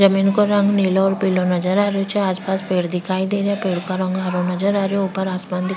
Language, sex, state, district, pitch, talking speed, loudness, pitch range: Rajasthani, female, Rajasthan, Churu, 190 Hz, 270 wpm, -19 LUFS, 185-195 Hz